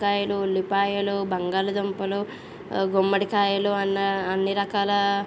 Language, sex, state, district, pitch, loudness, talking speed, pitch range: Telugu, female, Andhra Pradesh, Visakhapatnam, 200 Hz, -24 LUFS, 90 wpm, 195-200 Hz